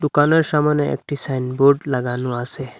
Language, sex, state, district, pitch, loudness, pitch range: Bengali, male, Assam, Hailakandi, 140 Hz, -19 LUFS, 125-150 Hz